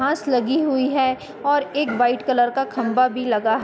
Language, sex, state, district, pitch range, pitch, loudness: Hindi, female, Uttar Pradesh, Muzaffarnagar, 245-280 Hz, 260 Hz, -20 LUFS